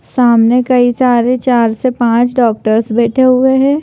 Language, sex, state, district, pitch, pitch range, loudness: Hindi, female, Madhya Pradesh, Bhopal, 245 Hz, 235-255 Hz, -11 LUFS